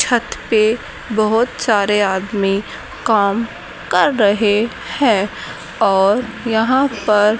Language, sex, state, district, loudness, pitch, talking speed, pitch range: Hindi, female, Haryana, Charkhi Dadri, -16 LUFS, 215 Hz, 105 wpm, 205-230 Hz